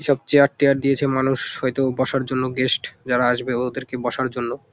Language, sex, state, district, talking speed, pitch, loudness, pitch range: Bengali, male, West Bengal, Jalpaiguri, 190 wpm, 130 Hz, -21 LUFS, 125-135 Hz